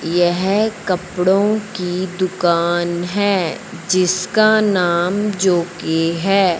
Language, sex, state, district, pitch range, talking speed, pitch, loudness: Hindi, male, Punjab, Fazilka, 175-200 Hz, 80 wpm, 185 Hz, -17 LUFS